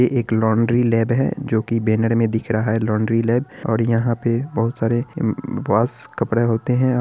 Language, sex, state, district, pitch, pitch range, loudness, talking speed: Hindi, male, Bihar, Araria, 115 Hz, 115-120 Hz, -20 LUFS, 190 wpm